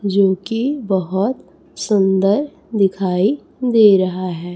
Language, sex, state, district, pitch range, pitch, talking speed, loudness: Hindi, female, Chhattisgarh, Raipur, 190-225 Hz, 200 Hz, 105 wpm, -17 LUFS